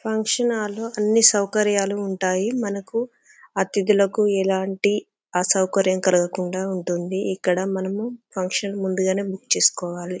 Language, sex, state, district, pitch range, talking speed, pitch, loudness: Telugu, female, Telangana, Karimnagar, 185-210 Hz, 105 wpm, 195 Hz, -22 LUFS